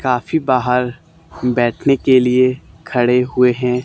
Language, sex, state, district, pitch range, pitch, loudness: Hindi, male, Haryana, Charkhi Dadri, 125-130 Hz, 125 Hz, -16 LUFS